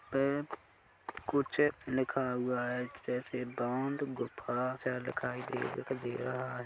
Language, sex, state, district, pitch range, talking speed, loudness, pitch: Hindi, male, Chhattisgarh, Kabirdham, 125-135 Hz, 110 wpm, -36 LUFS, 130 Hz